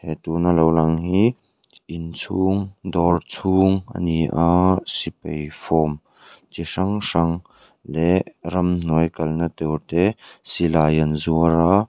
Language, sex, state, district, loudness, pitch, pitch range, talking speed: Mizo, male, Mizoram, Aizawl, -20 LUFS, 85 Hz, 80-95 Hz, 125 wpm